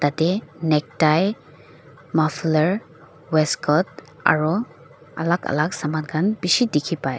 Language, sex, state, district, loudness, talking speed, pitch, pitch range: Nagamese, female, Nagaland, Dimapur, -21 LUFS, 100 wpm, 160 Hz, 150-175 Hz